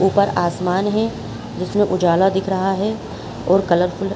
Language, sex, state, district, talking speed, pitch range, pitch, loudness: Hindi, female, Chhattisgarh, Bilaspur, 160 wpm, 180-200 Hz, 190 Hz, -19 LUFS